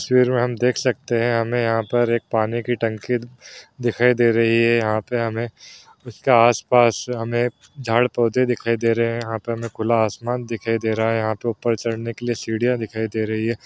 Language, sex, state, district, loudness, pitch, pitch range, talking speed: Hindi, male, Bihar, East Champaran, -20 LUFS, 115 Hz, 115-120 Hz, 190 wpm